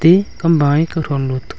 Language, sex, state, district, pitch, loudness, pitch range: Wancho, male, Arunachal Pradesh, Longding, 160 Hz, -16 LUFS, 140-165 Hz